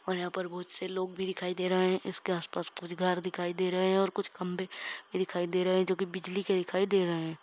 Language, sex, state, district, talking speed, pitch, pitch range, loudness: Hindi, female, Bihar, Saran, 285 wpm, 185 Hz, 180-190 Hz, -32 LUFS